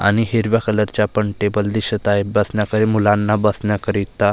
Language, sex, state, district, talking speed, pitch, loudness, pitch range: Marathi, male, Maharashtra, Gondia, 150 wpm, 105 Hz, -18 LUFS, 105-110 Hz